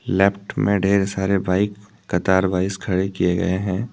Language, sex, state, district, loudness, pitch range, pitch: Hindi, male, Jharkhand, Deoghar, -20 LUFS, 95-100 Hz, 95 Hz